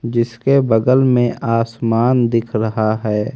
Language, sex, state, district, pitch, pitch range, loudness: Hindi, male, Haryana, Rohtak, 115 Hz, 110-125 Hz, -16 LUFS